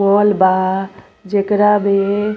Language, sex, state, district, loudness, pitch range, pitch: Bhojpuri, female, Uttar Pradesh, Gorakhpur, -15 LUFS, 195-205 Hz, 200 Hz